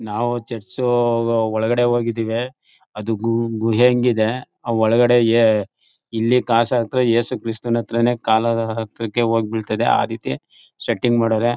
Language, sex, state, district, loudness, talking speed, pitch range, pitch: Kannada, male, Karnataka, Mysore, -19 LUFS, 125 wpm, 110-120 Hz, 115 Hz